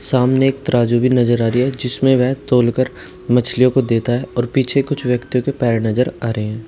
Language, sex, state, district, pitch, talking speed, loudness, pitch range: Hindi, male, Uttar Pradesh, Shamli, 125 Hz, 225 wpm, -16 LUFS, 120-130 Hz